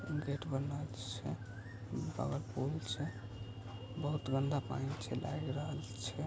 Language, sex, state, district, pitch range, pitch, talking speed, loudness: Hindi, male, Bihar, Samastipur, 110-145 Hz, 135 Hz, 135 wpm, -41 LUFS